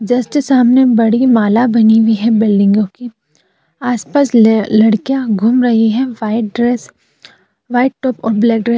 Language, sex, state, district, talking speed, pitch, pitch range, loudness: Hindi, female, Uttar Pradesh, Jyotiba Phule Nagar, 165 wpm, 230 Hz, 220-245 Hz, -12 LUFS